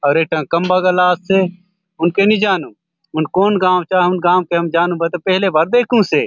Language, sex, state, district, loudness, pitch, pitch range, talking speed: Halbi, male, Chhattisgarh, Bastar, -15 LUFS, 180 Hz, 170-190 Hz, 210 wpm